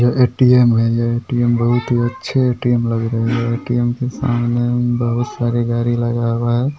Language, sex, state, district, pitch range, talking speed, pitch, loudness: Hindi, male, Bihar, Purnia, 120-125 Hz, 195 wpm, 120 Hz, -17 LUFS